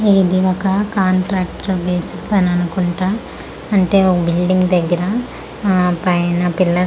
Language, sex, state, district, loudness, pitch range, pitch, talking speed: Telugu, female, Andhra Pradesh, Manyam, -16 LUFS, 180-195 Hz, 185 Hz, 130 wpm